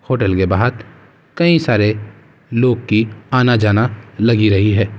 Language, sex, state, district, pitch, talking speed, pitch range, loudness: Hindi, male, Uttar Pradesh, Muzaffarnagar, 110 Hz, 145 wpm, 105-125 Hz, -15 LUFS